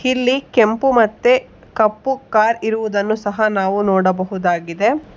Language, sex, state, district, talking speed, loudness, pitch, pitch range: Kannada, female, Karnataka, Bangalore, 105 wpm, -17 LUFS, 215 Hz, 200-250 Hz